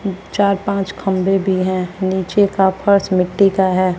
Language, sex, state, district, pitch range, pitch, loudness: Hindi, female, Bihar, West Champaran, 185-195 Hz, 190 Hz, -16 LUFS